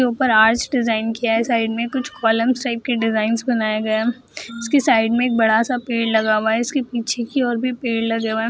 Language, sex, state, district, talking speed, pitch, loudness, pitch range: Hindi, female, Bihar, Jahanabad, 235 wpm, 230 Hz, -19 LUFS, 225-245 Hz